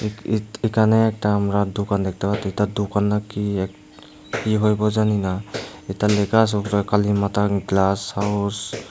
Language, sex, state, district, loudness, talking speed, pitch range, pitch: Bengali, male, Tripura, Unakoti, -21 LUFS, 160 wpm, 100-105 Hz, 105 Hz